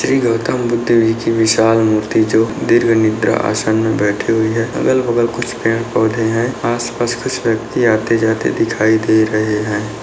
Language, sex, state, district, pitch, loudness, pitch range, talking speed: Hindi, male, Bihar, Begusarai, 115 Hz, -15 LUFS, 110-120 Hz, 155 wpm